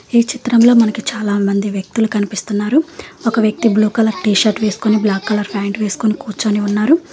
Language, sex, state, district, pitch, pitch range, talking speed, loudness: Telugu, female, Telangana, Hyderabad, 215 Hz, 205-230 Hz, 170 wpm, -15 LUFS